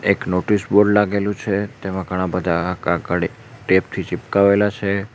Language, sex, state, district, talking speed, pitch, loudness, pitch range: Gujarati, male, Gujarat, Valsad, 140 wpm, 100 Hz, -19 LUFS, 95-105 Hz